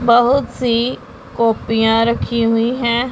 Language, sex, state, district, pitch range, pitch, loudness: Hindi, male, Punjab, Pathankot, 230-245 Hz, 235 Hz, -16 LUFS